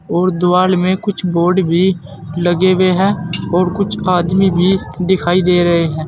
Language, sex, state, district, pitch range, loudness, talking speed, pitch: Hindi, male, Uttar Pradesh, Saharanpur, 175-185 Hz, -14 LUFS, 165 wpm, 180 Hz